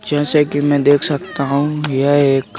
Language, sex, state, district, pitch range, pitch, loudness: Hindi, male, Madhya Pradesh, Bhopal, 140-150 Hz, 145 Hz, -15 LUFS